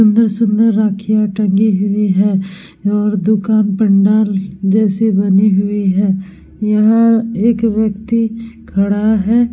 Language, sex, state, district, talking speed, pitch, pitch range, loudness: Hindi, female, Bihar, Vaishali, 105 wpm, 210 Hz, 200-220 Hz, -13 LUFS